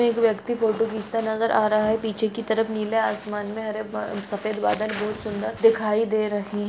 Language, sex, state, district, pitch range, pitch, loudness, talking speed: Hindi, female, Jharkhand, Sahebganj, 210-225 Hz, 215 Hz, -24 LUFS, 205 wpm